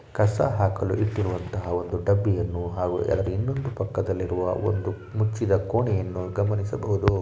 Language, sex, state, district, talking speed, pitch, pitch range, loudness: Kannada, male, Karnataka, Shimoga, 110 wpm, 100 Hz, 90-105 Hz, -26 LUFS